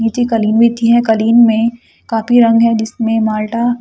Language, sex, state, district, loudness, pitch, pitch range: Hindi, female, Delhi, New Delhi, -12 LUFS, 230 Hz, 225-235 Hz